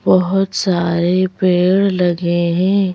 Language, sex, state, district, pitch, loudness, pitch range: Hindi, female, Madhya Pradesh, Bhopal, 180 Hz, -15 LUFS, 175-190 Hz